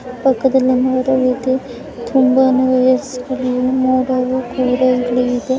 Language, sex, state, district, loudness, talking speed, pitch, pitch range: Kannada, female, Karnataka, Mysore, -15 LUFS, 120 wpm, 255 Hz, 250-260 Hz